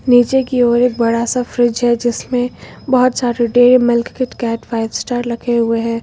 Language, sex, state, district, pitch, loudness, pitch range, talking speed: Hindi, female, Uttar Pradesh, Lucknow, 240 Hz, -15 LUFS, 235-250 Hz, 200 wpm